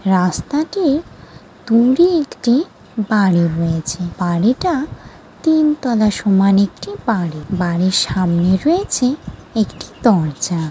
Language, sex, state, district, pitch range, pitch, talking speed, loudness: Bengali, female, West Bengal, Jalpaiguri, 175-255 Hz, 205 Hz, 95 wpm, -16 LUFS